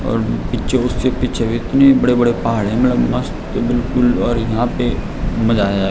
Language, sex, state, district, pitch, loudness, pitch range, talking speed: Hindi, male, Uttarakhand, Tehri Garhwal, 120 Hz, -16 LUFS, 115-120 Hz, 185 wpm